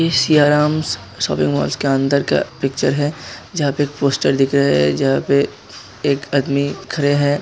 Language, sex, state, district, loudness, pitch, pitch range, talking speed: Hindi, male, Uttar Pradesh, Hamirpur, -17 LUFS, 140 Hz, 135-145 Hz, 180 wpm